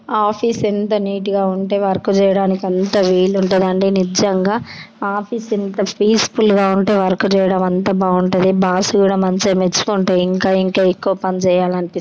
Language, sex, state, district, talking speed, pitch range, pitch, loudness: Telugu, female, Andhra Pradesh, Srikakulam, 140 wpm, 185-205 Hz, 195 Hz, -16 LUFS